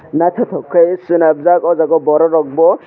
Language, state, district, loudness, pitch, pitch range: Kokborok, Tripura, West Tripura, -13 LUFS, 165 Hz, 160-175 Hz